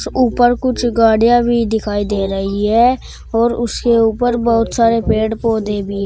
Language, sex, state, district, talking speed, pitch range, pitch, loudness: Hindi, female, Uttar Pradesh, Shamli, 170 wpm, 215-240 Hz, 230 Hz, -15 LUFS